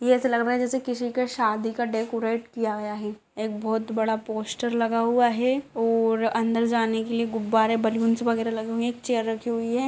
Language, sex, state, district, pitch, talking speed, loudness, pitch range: Hindi, female, Uttar Pradesh, Ghazipur, 230 Hz, 230 wpm, -25 LUFS, 225-240 Hz